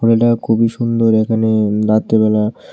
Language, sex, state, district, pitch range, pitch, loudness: Bengali, male, Tripura, West Tripura, 110-115 Hz, 110 Hz, -14 LUFS